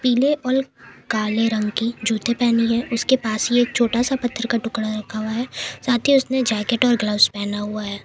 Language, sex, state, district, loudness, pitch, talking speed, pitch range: Hindi, female, Jharkhand, Palamu, -20 LUFS, 235 Hz, 200 wpm, 215-245 Hz